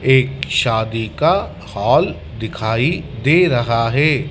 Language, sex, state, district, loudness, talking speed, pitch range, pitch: Hindi, male, Madhya Pradesh, Dhar, -17 LUFS, 110 wpm, 110-140 Hz, 120 Hz